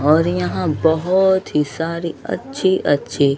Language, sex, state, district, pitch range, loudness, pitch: Hindi, male, Bihar, Kaimur, 145-185 Hz, -18 LUFS, 160 Hz